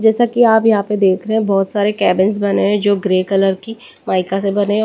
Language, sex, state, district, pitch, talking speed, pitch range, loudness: Hindi, female, Delhi, New Delhi, 205 Hz, 260 wpm, 195-220 Hz, -15 LUFS